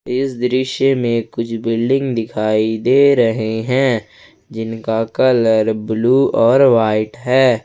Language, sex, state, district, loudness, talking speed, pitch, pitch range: Hindi, male, Jharkhand, Ranchi, -15 LUFS, 115 wpm, 115 Hz, 110-130 Hz